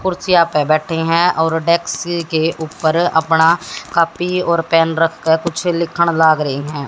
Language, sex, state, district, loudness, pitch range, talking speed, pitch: Hindi, female, Haryana, Jhajjar, -15 LUFS, 160-170 Hz, 165 wpm, 165 Hz